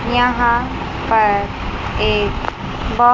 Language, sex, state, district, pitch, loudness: Hindi, female, Chandigarh, Chandigarh, 215 Hz, -18 LUFS